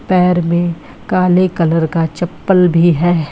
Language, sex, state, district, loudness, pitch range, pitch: Hindi, male, Uttar Pradesh, Varanasi, -13 LUFS, 165-180 Hz, 175 Hz